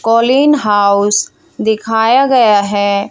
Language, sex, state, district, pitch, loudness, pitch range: Hindi, female, Haryana, Jhajjar, 220 Hz, -11 LUFS, 205-240 Hz